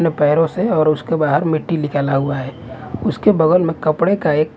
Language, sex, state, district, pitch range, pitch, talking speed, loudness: Hindi, male, Haryana, Charkhi Dadri, 140-165 Hz, 155 Hz, 210 wpm, -16 LUFS